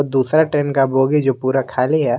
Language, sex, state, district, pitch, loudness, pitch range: Hindi, male, Jharkhand, Garhwa, 135 Hz, -17 LUFS, 130-150 Hz